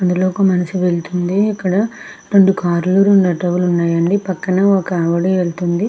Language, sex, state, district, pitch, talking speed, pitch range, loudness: Telugu, female, Andhra Pradesh, Krishna, 185 Hz, 155 wpm, 175-195 Hz, -15 LUFS